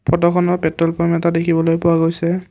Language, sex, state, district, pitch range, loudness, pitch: Assamese, male, Assam, Kamrup Metropolitan, 165-170 Hz, -16 LUFS, 170 Hz